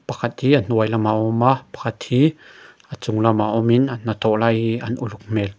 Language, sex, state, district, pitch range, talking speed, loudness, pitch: Mizo, male, Mizoram, Aizawl, 110-125 Hz, 225 wpm, -19 LUFS, 115 Hz